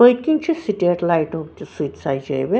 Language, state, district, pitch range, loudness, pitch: Kashmiri, Punjab, Kapurthala, 145-240 Hz, -20 LUFS, 170 Hz